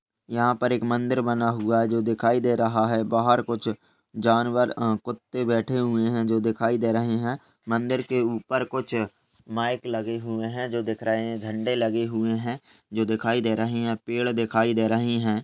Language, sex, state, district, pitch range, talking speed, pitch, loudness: Hindi, male, Uttar Pradesh, Ghazipur, 115-120 Hz, 200 wpm, 115 Hz, -25 LUFS